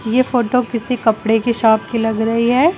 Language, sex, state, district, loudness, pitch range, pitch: Hindi, female, Uttar Pradesh, Lucknow, -16 LUFS, 225-250 Hz, 230 Hz